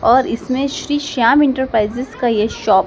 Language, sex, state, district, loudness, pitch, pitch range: Hindi, female, Madhya Pradesh, Dhar, -16 LUFS, 250 Hz, 225-275 Hz